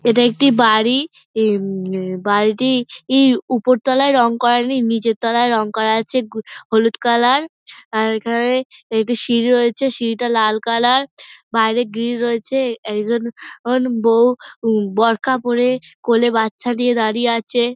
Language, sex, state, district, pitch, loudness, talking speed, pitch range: Bengali, female, West Bengal, Dakshin Dinajpur, 235 Hz, -17 LUFS, 130 wpm, 225-250 Hz